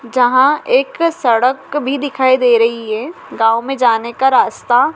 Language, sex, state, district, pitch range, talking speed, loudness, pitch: Hindi, female, Madhya Pradesh, Dhar, 235-275 Hz, 160 wpm, -14 LUFS, 255 Hz